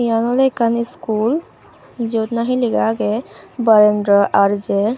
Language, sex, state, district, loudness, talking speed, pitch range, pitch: Chakma, female, Tripura, Unakoti, -17 LUFS, 120 wpm, 210-240 Hz, 225 Hz